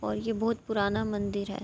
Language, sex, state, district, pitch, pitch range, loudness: Urdu, female, Andhra Pradesh, Anantapur, 205 Hz, 200-220 Hz, -30 LUFS